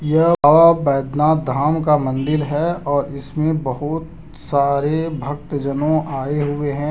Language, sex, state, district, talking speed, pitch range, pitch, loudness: Hindi, male, Jharkhand, Deoghar, 140 wpm, 140-155 Hz, 150 Hz, -18 LUFS